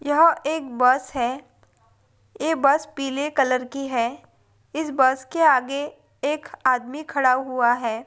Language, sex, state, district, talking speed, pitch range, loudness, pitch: Hindi, female, Maharashtra, Pune, 140 wpm, 240-290 Hz, -22 LUFS, 260 Hz